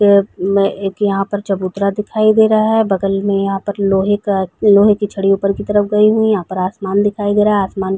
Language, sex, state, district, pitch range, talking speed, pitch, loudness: Hindi, female, Chhattisgarh, Raigarh, 195-210 Hz, 255 wpm, 200 Hz, -15 LUFS